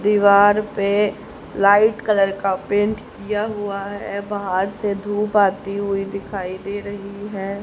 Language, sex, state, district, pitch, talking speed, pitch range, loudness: Hindi, female, Haryana, Jhajjar, 200 Hz, 140 wpm, 195-210 Hz, -20 LUFS